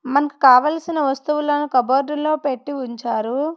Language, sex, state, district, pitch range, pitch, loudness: Telugu, female, Telangana, Hyderabad, 255-300 Hz, 285 Hz, -19 LUFS